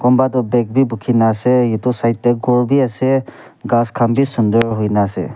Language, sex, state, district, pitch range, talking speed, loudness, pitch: Nagamese, male, Nagaland, Kohima, 115-125 Hz, 200 wpm, -15 LUFS, 120 Hz